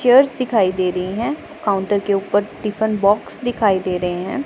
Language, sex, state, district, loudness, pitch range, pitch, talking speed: Hindi, female, Punjab, Pathankot, -19 LUFS, 190-245 Hz, 205 Hz, 190 wpm